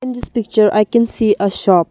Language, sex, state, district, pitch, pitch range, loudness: English, female, Arunachal Pradesh, Longding, 215 Hz, 200-235 Hz, -15 LUFS